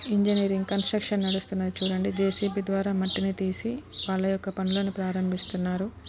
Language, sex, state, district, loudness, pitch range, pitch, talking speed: Telugu, female, Telangana, Nalgonda, -26 LUFS, 190-200 Hz, 195 Hz, 130 wpm